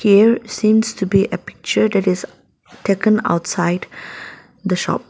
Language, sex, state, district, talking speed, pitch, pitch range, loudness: English, female, Nagaland, Dimapur, 130 wpm, 195 Hz, 180-215 Hz, -17 LUFS